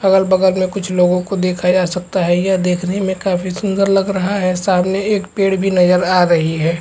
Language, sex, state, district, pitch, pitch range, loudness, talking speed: Hindi, male, Chhattisgarh, Bastar, 185 Hz, 180-195 Hz, -15 LUFS, 240 wpm